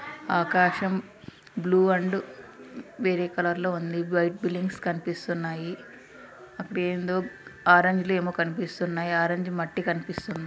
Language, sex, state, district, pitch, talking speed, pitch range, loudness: Telugu, female, Andhra Pradesh, Anantapur, 180 Hz, 85 wpm, 175-185 Hz, -26 LUFS